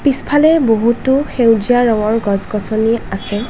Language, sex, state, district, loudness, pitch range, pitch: Assamese, female, Assam, Kamrup Metropolitan, -14 LUFS, 215-260 Hz, 230 Hz